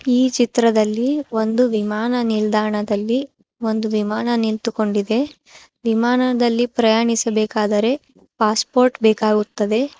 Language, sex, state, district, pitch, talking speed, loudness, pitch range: Kannada, female, Karnataka, Chamarajanagar, 225 Hz, 80 wpm, -19 LUFS, 215-245 Hz